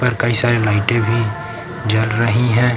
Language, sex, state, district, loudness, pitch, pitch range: Hindi, male, Uttar Pradesh, Lucknow, -16 LUFS, 115 Hz, 110-120 Hz